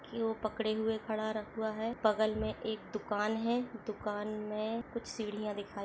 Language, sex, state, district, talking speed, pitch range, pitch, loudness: Hindi, female, West Bengal, Purulia, 175 wpm, 215-225 Hz, 215 Hz, -36 LUFS